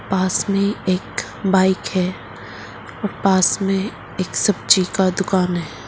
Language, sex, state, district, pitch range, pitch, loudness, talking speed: Hindi, female, Arunachal Pradesh, Lower Dibang Valley, 175-195 Hz, 185 Hz, -19 LUFS, 100 wpm